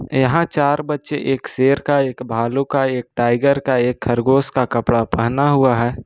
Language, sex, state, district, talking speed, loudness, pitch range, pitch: Hindi, male, Jharkhand, Ranchi, 190 wpm, -17 LUFS, 120-140 Hz, 130 Hz